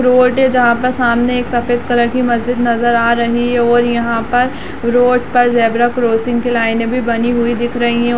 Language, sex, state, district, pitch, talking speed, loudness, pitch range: Hindi, female, Chhattisgarh, Rajnandgaon, 240 Hz, 225 wpm, -13 LUFS, 235-245 Hz